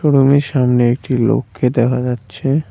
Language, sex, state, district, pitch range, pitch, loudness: Bengali, male, West Bengal, Cooch Behar, 120-135 Hz, 125 Hz, -15 LUFS